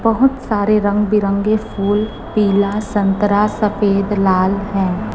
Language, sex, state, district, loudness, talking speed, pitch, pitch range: Hindi, female, Chhattisgarh, Raipur, -16 LUFS, 115 wpm, 205 Hz, 200-210 Hz